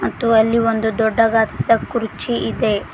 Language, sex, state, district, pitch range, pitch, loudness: Kannada, female, Karnataka, Koppal, 220-230 Hz, 225 Hz, -17 LUFS